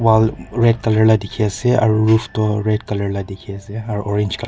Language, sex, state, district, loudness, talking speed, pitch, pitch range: Nagamese, male, Nagaland, Dimapur, -17 LUFS, 240 wpm, 110 Hz, 105-110 Hz